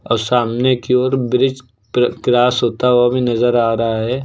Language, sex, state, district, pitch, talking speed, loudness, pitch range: Hindi, male, Uttar Pradesh, Lucknow, 125 Hz, 185 wpm, -15 LUFS, 120-125 Hz